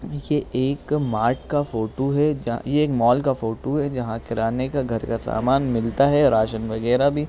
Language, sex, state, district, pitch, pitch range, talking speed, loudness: Hindi, male, Jharkhand, Jamtara, 130 Hz, 115-145 Hz, 205 wpm, -22 LUFS